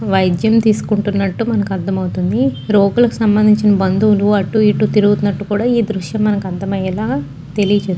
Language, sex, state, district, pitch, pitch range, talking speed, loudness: Telugu, female, Andhra Pradesh, Guntur, 205 Hz, 190-215 Hz, 130 wpm, -15 LUFS